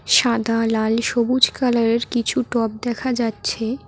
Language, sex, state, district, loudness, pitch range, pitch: Bengali, female, West Bengal, Cooch Behar, -20 LUFS, 230-245 Hz, 235 Hz